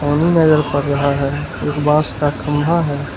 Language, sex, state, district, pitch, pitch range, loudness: Hindi, male, Gujarat, Valsad, 145 Hz, 140-150 Hz, -16 LUFS